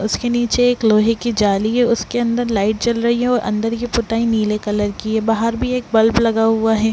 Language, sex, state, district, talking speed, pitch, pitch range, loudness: Hindi, female, Bihar, Darbhanga, 250 wpm, 230 Hz, 220-240 Hz, -17 LUFS